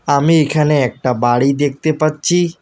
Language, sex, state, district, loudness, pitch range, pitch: Bengali, male, West Bengal, Alipurduar, -15 LUFS, 135-155 Hz, 150 Hz